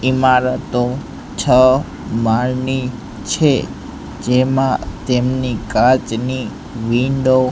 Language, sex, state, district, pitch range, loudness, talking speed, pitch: Gujarati, male, Gujarat, Gandhinagar, 125-130 Hz, -17 LUFS, 70 wpm, 125 Hz